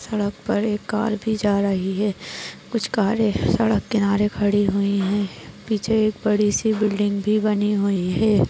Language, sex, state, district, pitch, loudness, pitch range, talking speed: Hindi, female, Maharashtra, Nagpur, 210 Hz, -21 LUFS, 200-215 Hz, 160 wpm